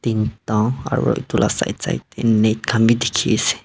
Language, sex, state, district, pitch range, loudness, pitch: Nagamese, male, Nagaland, Dimapur, 110-115 Hz, -19 LUFS, 115 Hz